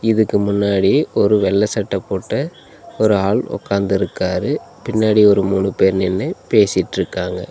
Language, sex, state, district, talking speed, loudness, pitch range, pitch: Tamil, male, Tamil Nadu, Nilgiris, 120 wpm, -17 LUFS, 95-105 Hz, 100 Hz